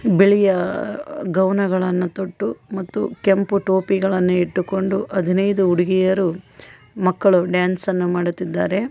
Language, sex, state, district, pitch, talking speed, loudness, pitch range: Kannada, female, Karnataka, Koppal, 190 Hz, 95 wpm, -19 LUFS, 180-195 Hz